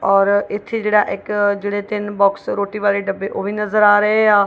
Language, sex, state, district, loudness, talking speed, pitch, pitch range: Punjabi, female, Punjab, Kapurthala, -17 LUFS, 215 wpm, 205 Hz, 200-210 Hz